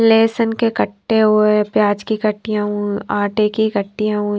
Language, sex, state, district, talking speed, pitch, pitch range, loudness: Hindi, female, Himachal Pradesh, Shimla, 190 wpm, 215 Hz, 205-220 Hz, -17 LUFS